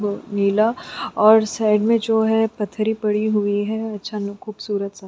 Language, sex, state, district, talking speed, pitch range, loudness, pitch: Hindi, female, Chhattisgarh, Sukma, 165 wpm, 205-220 Hz, -20 LUFS, 215 Hz